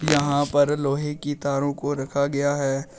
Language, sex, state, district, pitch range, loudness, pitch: Hindi, male, Uttar Pradesh, Shamli, 140-145 Hz, -23 LUFS, 145 Hz